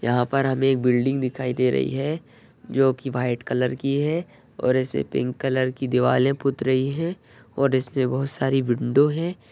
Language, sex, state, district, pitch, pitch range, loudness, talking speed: Hindi, male, Maharashtra, Solapur, 130 Hz, 125-135 Hz, -23 LUFS, 190 wpm